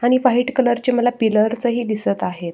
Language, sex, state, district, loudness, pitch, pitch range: Marathi, male, Maharashtra, Solapur, -18 LUFS, 240 Hz, 215-245 Hz